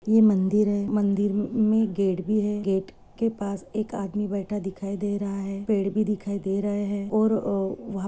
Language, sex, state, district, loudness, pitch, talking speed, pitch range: Hindi, female, Maharashtra, Solapur, -25 LUFS, 205 Hz, 200 wpm, 195-210 Hz